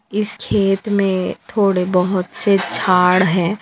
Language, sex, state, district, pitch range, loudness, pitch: Hindi, female, Bihar, Lakhisarai, 180-205 Hz, -17 LUFS, 195 Hz